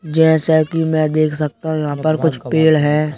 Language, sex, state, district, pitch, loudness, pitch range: Hindi, male, Madhya Pradesh, Bhopal, 155 Hz, -16 LUFS, 150-160 Hz